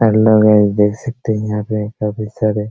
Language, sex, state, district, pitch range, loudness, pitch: Hindi, male, Bihar, Araria, 105-110 Hz, -15 LUFS, 105 Hz